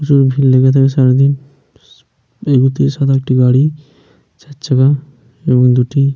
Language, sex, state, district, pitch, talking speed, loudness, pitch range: Bengali, male, West Bengal, Paschim Medinipur, 135 Hz, 135 wpm, -12 LUFS, 130-140 Hz